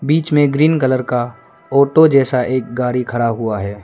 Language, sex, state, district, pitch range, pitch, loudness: Hindi, male, Arunachal Pradesh, Lower Dibang Valley, 120-140 Hz, 130 Hz, -15 LUFS